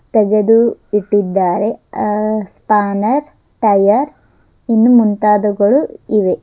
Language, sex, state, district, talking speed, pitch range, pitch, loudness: Kannada, male, Karnataka, Dharwad, 75 wpm, 205-225 Hz, 210 Hz, -14 LUFS